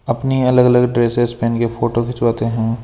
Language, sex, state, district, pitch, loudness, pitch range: Hindi, male, Rajasthan, Jaipur, 115 Hz, -16 LUFS, 115-125 Hz